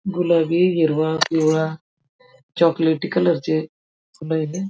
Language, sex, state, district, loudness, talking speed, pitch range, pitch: Marathi, female, Maharashtra, Aurangabad, -19 LUFS, 115 wpm, 155-170 Hz, 160 Hz